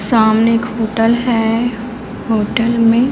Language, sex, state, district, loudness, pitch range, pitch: Hindi, female, Chhattisgarh, Raipur, -14 LUFS, 225-235 Hz, 230 Hz